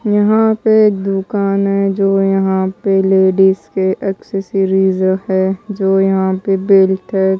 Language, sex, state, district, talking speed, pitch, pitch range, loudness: Hindi, female, Odisha, Malkangiri, 130 wpm, 195 Hz, 190-195 Hz, -14 LUFS